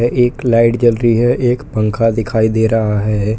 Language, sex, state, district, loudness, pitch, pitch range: Hindi, male, Jharkhand, Palamu, -14 LUFS, 115 Hz, 110-120 Hz